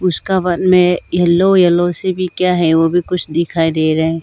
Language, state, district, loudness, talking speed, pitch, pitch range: Hindi, Arunachal Pradesh, Lower Dibang Valley, -14 LUFS, 225 wpm, 175 Hz, 165-185 Hz